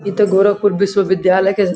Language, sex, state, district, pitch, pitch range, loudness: Hindi, female, Uttar Pradesh, Gorakhpur, 200 Hz, 190-200 Hz, -14 LUFS